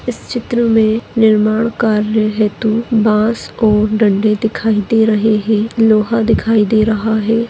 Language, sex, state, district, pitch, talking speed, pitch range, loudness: Hindi, female, Goa, North and South Goa, 220 Hz, 145 wpm, 215-225 Hz, -13 LUFS